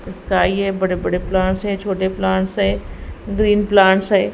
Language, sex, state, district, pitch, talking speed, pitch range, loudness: Hindi, female, Haryana, Rohtak, 190 Hz, 140 wpm, 185-200 Hz, -17 LUFS